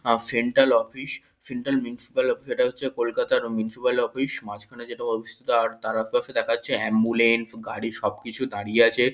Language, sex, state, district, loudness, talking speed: Bengali, male, West Bengal, North 24 Parganas, -24 LUFS, 165 wpm